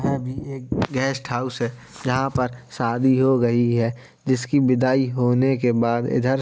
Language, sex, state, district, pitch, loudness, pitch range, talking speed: Hindi, male, Uttar Pradesh, Jalaun, 125 Hz, -22 LUFS, 120-130 Hz, 175 wpm